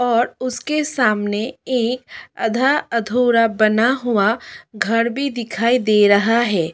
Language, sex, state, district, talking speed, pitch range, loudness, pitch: Hindi, female, Delhi, New Delhi, 125 wpm, 215-250 Hz, -18 LUFS, 235 Hz